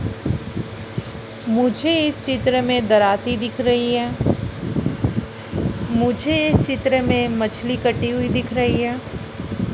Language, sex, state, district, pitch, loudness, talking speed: Hindi, female, Madhya Pradesh, Dhar, 240 Hz, -20 LUFS, 110 wpm